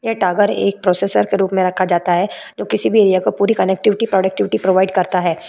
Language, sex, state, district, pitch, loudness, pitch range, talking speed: Hindi, female, Uttar Pradesh, Budaun, 190 Hz, -16 LUFS, 180-200 Hz, 230 wpm